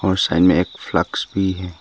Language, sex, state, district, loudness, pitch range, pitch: Hindi, male, Arunachal Pradesh, Papum Pare, -19 LUFS, 90-95 Hz, 95 Hz